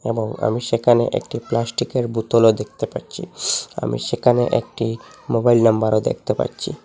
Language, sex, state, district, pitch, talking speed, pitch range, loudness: Bengali, male, Assam, Hailakandi, 115 Hz, 130 wpm, 110-120 Hz, -20 LUFS